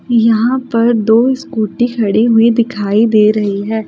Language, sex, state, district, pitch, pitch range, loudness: Hindi, female, Delhi, New Delhi, 225 Hz, 215-235 Hz, -12 LUFS